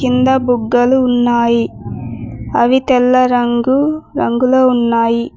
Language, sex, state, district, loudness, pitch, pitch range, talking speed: Telugu, female, Telangana, Mahabubabad, -13 LUFS, 245 Hz, 235-255 Hz, 90 wpm